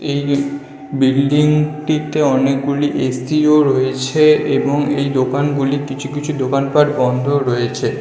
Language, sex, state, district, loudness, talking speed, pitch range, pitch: Bengali, male, West Bengal, North 24 Parganas, -16 LUFS, 150 wpm, 135-150 Hz, 140 Hz